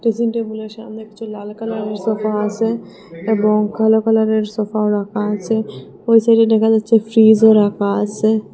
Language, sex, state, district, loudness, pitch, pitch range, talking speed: Bengali, female, Assam, Hailakandi, -16 LUFS, 220 Hz, 210-225 Hz, 140 wpm